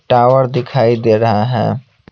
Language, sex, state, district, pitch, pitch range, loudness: Hindi, male, Bihar, Patna, 120 Hz, 115-125 Hz, -13 LUFS